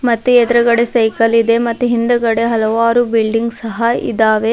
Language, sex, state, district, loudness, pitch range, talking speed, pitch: Kannada, female, Karnataka, Bidar, -13 LUFS, 225-235 Hz, 120 wpm, 230 Hz